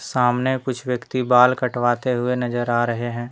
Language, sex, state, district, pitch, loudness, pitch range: Hindi, male, Jharkhand, Deoghar, 125 Hz, -20 LUFS, 120-125 Hz